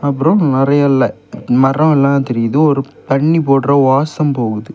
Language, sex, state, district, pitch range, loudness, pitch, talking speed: Tamil, male, Tamil Nadu, Kanyakumari, 135-150 Hz, -13 LUFS, 140 Hz, 125 wpm